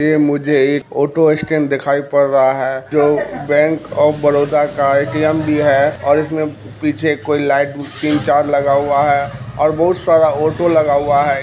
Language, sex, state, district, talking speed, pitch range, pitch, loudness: Maithili, male, Bihar, Kishanganj, 180 wpm, 140-150 Hz, 145 Hz, -15 LUFS